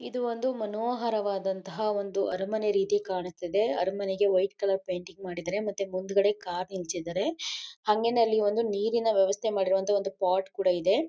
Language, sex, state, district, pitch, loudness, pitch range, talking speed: Kannada, female, Karnataka, Mysore, 195 Hz, -29 LUFS, 190-215 Hz, 135 wpm